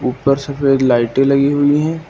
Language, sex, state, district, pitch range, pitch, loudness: Hindi, male, Uttar Pradesh, Lucknow, 135-145 Hz, 140 Hz, -14 LUFS